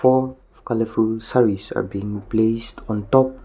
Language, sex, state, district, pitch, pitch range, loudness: English, male, Nagaland, Kohima, 115 Hz, 110-130 Hz, -21 LUFS